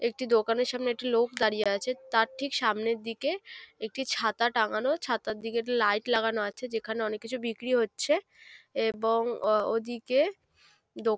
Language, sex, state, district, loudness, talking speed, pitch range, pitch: Bengali, female, West Bengal, North 24 Parganas, -29 LUFS, 150 wpm, 220-250 Hz, 230 Hz